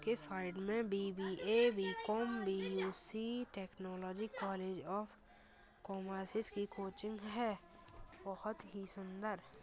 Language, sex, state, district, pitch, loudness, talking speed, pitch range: Hindi, female, Bihar, Purnia, 195 Hz, -42 LUFS, 95 wpm, 190-215 Hz